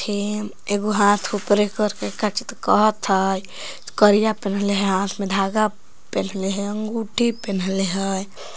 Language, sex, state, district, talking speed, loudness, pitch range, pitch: Magahi, female, Jharkhand, Palamu, 140 wpm, -21 LUFS, 195-215 Hz, 205 Hz